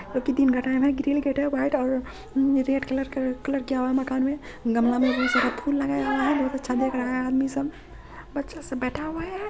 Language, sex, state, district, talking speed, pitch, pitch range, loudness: Hindi, female, Bihar, Saharsa, 220 wpm, 270 Hz, 260-280 Hz, -25 LUFS